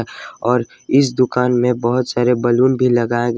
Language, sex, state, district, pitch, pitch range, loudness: Hindi, male, Jharkhand, Ranchi, 125 Hz, 120-125 Hz, -16 LUFS